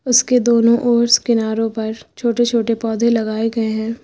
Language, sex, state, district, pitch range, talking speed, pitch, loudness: Hindi, female, Uttar Pradesh, Lucknow, 225-235 Hz, 165 wpm, 230 Hz, -16 LUFS